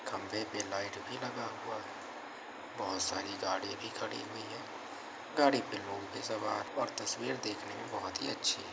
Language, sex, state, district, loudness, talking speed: Hindi, male, Uttar Pradesh, Varanasi, -37 LUFS, 185 wpm